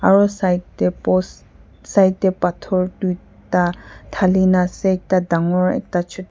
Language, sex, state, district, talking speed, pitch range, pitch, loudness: Nagamese, female, Nagaland, Kohima, 135 wpm, 170-190 Hz, 180 Hz, -18 LUFS